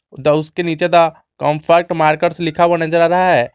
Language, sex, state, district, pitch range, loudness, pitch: Hindi, male, Jharkhand, Garhwa, 155-175 Hz, -15 LUFS, 170 Hz